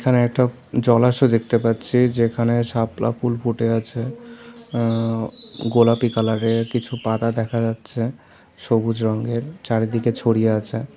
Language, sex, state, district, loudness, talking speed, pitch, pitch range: Bengali, male, Tripura, South Tripura, -20 LUFS, 125 wpm, 115 Hz, 115-120 Hz